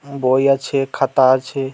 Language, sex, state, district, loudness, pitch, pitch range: Bengali, male, West Bengal, Dakshin Dinajpur, -16 LUFS, 135 Hz, 130-140 Hz